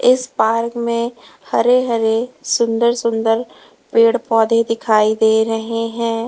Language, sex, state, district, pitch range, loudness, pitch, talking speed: Hindi, female, Uttar Pradesh, Lalitpur, 225-235 Hz, -16 LUFS, 230 Hz, 125 wpm